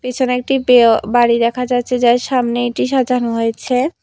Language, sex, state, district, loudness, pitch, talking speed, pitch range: Bengali, female, Tripura, West Tripura, -15 LUFS, 245 Hz, 165 wpm, 240-250 Hz